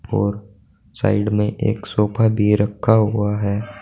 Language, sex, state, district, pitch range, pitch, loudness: Hindi, male, Uttar Pradesh, Saharanpur, 105-110 Hz, 105 Hz, -19 LUFS